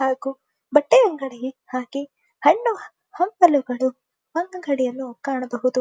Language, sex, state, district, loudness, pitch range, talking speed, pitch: Kannada, female, Karnataka, Dharwad, -22 LUFS, 255-335 Hz, 80 wpm, 270 Hz